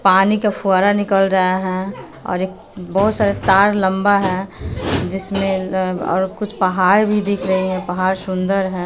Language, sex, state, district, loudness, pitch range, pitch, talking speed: Hindi, female, Bihar, West Champaran, -17 LUFS, 185-200 Hz, 190 Hz, 170 wpm